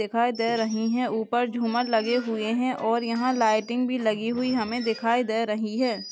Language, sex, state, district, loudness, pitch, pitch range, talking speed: Hindi, female, Chhattisgarh, Balrampur, -25 LUFS, 230 Hz, 220-245 Hz, 205 wpm